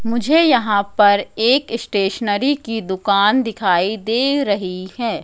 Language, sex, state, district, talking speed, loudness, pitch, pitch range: Hindi, female, Madhya Pradesh, Katni, 125 wpm, -17 LUFS, 220 Hz, 200-245 Hz